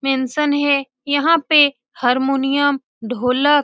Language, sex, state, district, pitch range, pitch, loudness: Hindi, female, Bihar, Saran, 260-290 Hz, 280 Hz, -17 LUFS